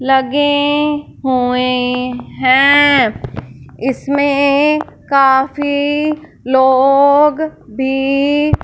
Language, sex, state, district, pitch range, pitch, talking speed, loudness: Hindi, female, Punjab, Fazilka, 260-290 Hz, 275 Hz, 50 wpm, -13 LUFS